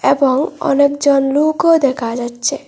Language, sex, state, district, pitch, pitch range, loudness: Bengali, female, Assam, Hailakandi, 280 Hz, 265-285 Hz, -14 LUFS